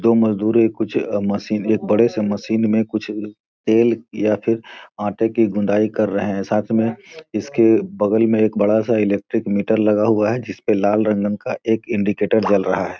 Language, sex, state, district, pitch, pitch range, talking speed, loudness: Hindi, male, Bihar, Gopalganj, 105 Hz, 105-110 Hz, 190 wpm, -18 LUFS